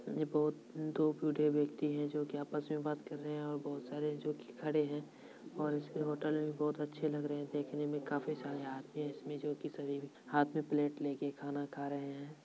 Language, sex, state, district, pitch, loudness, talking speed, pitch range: Hindi, male, Bihar, Supaul, 150 Hz, -39 LUFS, 225 wpm, 145-150 Hz